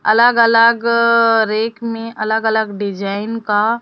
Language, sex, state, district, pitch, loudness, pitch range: Hindi, female, Chhattisgarh, Raipur, 225 Hz, -15 LUFS, 215-230 Hz